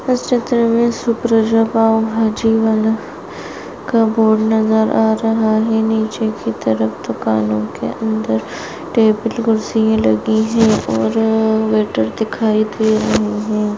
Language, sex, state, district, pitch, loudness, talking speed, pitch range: Hindi, female, Maharashtra, Solapur, 220 Hz, -16 LUFS, 120 wpm, 215-225 Hz